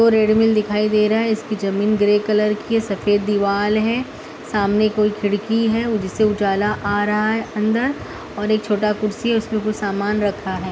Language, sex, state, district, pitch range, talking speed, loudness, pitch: Hindi, female, Uttar Pradesh, Muzaffarnagar, 205-220 Hz, 180 wpm, -19 LUFS, 210 Hz